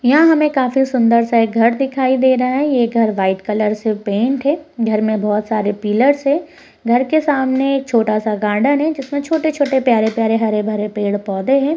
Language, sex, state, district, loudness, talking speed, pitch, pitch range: Hindi, female, Uttar Pradesh, Hamirpur, -16 LUFS, 220 wpm, 240 Hz, 215-275 Hz